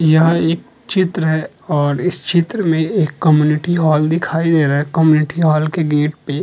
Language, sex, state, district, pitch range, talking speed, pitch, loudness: Hindi, male, Uttar Pradesh, Muzaffarnagar, 150-170 Hz, 195 wpm, 160 Hz, -15 LUFS